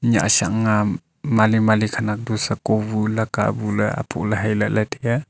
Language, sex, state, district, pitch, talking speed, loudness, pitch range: Wancho, male, Arunachal Pradesh, Longding, 110 Hz, 195 wpm, -20 LUFS, 105-110 Hz